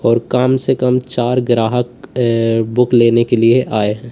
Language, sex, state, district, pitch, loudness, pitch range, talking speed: Hindi, male, Uttar Pradesh, Lalitpur, 120 Hz, -14 LUFS, 115-125 Hz, 175 wpm